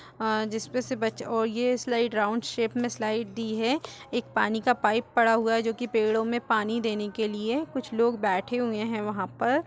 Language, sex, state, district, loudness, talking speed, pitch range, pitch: Hindi, female, Uttar Pradesh, Etah, -27 LUFS, 210 wpm, 220-240 Hz, 225 Hz